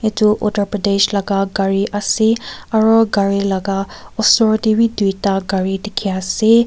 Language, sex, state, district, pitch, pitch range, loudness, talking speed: Nagamese, female, Nagaland, Kohima, 205 Hz, 195-220 Hz, -16 LUFS, 145 wpm